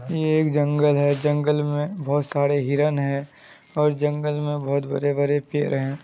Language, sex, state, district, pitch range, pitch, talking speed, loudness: Hindi, male, Bihar, Kishanganj, 140-150 Hz, 145 Hz, 170 wpm, -22 LUFS